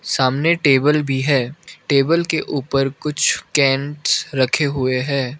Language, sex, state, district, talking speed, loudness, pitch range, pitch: Hindi, male, Arunachal Pradesh, Lower Dibang Valley, 135 wpm, -18 LUFS, 135-150 Hz, 140 Hz